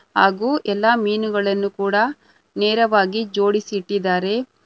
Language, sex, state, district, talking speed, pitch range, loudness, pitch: Kannada, female, Karnataka, Bangalore, 75 wpm, 200-225 Hz, -19 LUFS, 205 Hz